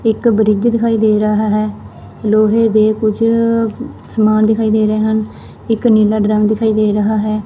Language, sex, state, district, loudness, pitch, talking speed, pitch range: Punjabi, female, Punjab, Fazilka, -13 LUFS, 215 Hz, 170 wpm, 215-225 Hz